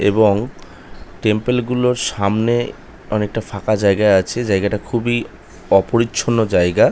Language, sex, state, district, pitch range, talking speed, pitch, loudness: Bengali, male, West Bengal, North 24 Parganas, 100-115 Hz, 110 wpm, 110 Hz, -17 LUFS